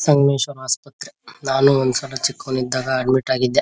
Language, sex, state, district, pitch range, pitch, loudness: Kannada, male, Karnataka, Gulbarga, 130-140 Hz, 130 Hz, -19 LUFS